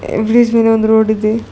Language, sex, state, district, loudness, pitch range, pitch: Kannada, female, Karnataka, Bidar, -12 LUFS, 220-230 Hz, 220 Hz